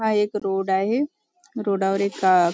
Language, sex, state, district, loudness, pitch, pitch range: Marathi, female, Maharashtra, Nagpur, -23 LUFS, 200 Hz, 195-225 Hz